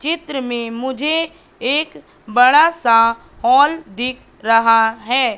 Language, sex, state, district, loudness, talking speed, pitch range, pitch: Hindi, female, Madhya Pradesh, Katni, -16 LUFS, 110 wpm, 230-320 Hz, 255 Hz